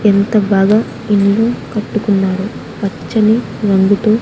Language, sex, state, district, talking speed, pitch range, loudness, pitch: Telugu, female, Andhra Pradesh, Annamaya, 85 wpm, 200-215 Hz, -14 LUFS, 210 Hz